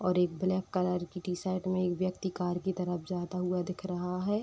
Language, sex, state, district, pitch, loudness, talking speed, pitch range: Hindi, female, Uttar Pradesh, Deoria, 180 Hz, -33 LUFS, 230 wpm, 180-185 Hz